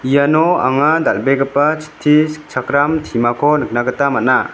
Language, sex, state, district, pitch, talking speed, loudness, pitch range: Garo, male, Meghalaya, West Garo Hills, 145 Hz, 120 wpm, -15 LUFS, 135-155 Hz